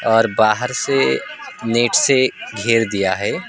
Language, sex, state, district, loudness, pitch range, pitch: Hindi, male, West Bengal, Alipurduar, -17 LUFS, 100-120 Hz, 115 Hz